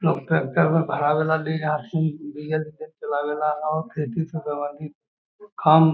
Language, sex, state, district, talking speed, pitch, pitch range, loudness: Magahi, male, Bihar, Gaya, 180 wpm, 155 Hz, 150-160 Hz, -23 LUFS